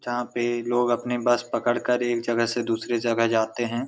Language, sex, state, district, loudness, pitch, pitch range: Hindi, male, Jharkhand, Jamtara, -24 LUFS, 120 Hz, 115-120 Hz